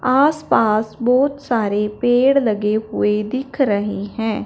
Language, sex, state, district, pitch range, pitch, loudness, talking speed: Hindi, female, Punjab, Fazilka, 210-260 Hz, 225 Hz, -18 LUFS, 120 wpm